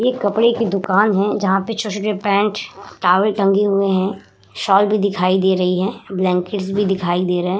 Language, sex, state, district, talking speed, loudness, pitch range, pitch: Hindi, female, Uttar Pradesh, Hamirpur, 195 wpm, -17 LUFS, 185-205 Hz, 195 Hz